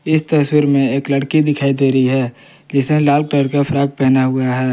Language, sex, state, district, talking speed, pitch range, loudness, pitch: Hindi, male, Jharkhand, Palamu, 215 wpm, 135-145 Hz, -15 LUFS, 140 Hz